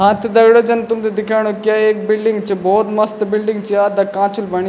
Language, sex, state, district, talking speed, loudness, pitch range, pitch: Garhwali, male, Uttarakhand, Tehri Garhwal, 255 wpm, -15 LUFS, 205-220 Hz, 215 Hz